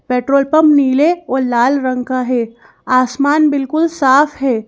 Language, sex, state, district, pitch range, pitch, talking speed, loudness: Hindi, female, Madhya Pradesh, Bhopal, 255-290 Hz, 265 Hz, 155 wpm, -13 LUFS